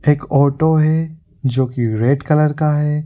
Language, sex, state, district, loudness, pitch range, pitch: Hindi, male, Bihar, Supaul, -16 LUFS, 135-155 Hz, 150 Hz